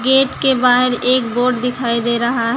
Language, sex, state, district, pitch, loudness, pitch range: Hindi, female, Uttar Pradesh, Lucknow, 250 Hz, -15 LUFS, 240-255 Hz